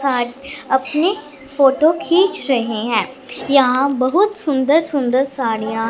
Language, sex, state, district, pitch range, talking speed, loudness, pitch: Hindi, female, Punjab, Fazilka, 255-295 Hz, 110 wpm, -17 LUFS, 270 Hz